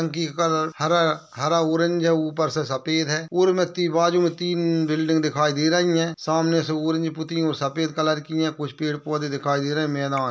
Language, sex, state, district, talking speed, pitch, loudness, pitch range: Hindi, male, Uttar Pradesh, Etah, 220 wpm, 160 Hz, -22 LUFS, 155-165 Hz